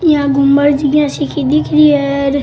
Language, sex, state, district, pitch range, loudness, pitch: Rajasthani, male, Rajasthan, Churu, 280-295 Hz, -12 LUFS, 290 Hz